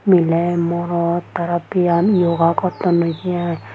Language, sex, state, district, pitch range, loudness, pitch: Chakma, female, Tripura, Unakoti, 170-175 Hz, -18 LUFS, 170 Hz